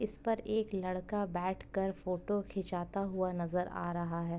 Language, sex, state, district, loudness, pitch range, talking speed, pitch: Hindi, female, Uttar Pradesh, Ghazipur, -37 LUFS, 175-200 Hz, 180 wpm, 185 Hz